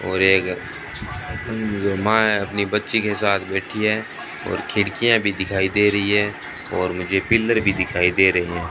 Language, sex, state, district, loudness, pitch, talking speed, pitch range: Hindi, male, Rajasthan, Bikaner, -20 LUFS, 100 Hz, 170 wpm, 95-105 Hz